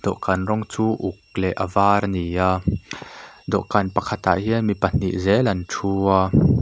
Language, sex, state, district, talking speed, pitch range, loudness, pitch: Mizo, male, Mizoram, Aizawl, 170 wpm, 95-105 Hz, -21 LUFS, 100 Hz